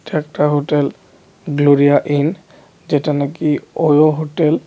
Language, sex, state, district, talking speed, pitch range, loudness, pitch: Bengali, male, Tripura, West Tripura, 130 wpm, 145-155 Hz, -16 LUFS, 150 Hz